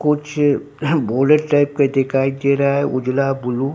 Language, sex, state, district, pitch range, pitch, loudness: Hindi, male, Bihar, Katihar, 135-145 Hz, 140 Hz, -17 LUFS